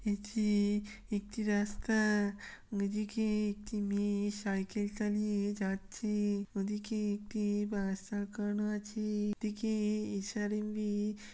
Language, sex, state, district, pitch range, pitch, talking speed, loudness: Bengali, female, West Bengal, Jhargram, 205-210 Hz, 210 Hz, 90 wpm, -35 LUFS